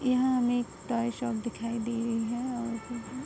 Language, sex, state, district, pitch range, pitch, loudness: Hindi, female, Uttar Pradesh, Budaun, 230-245 Hz, 235 Hz, -31 LUFS